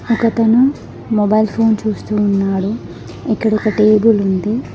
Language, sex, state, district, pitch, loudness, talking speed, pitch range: Telugu, female, Telangana, Mahabubabad, 215 Hz, -15 LUFS, 100 wpm, 210-225 Hz